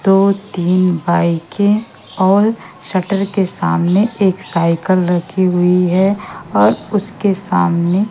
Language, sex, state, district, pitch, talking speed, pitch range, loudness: Hindi, female, Madhya Pradesh, Katni, 185 Hz, 110 wpm, 175-200 Hz, -15 LUFS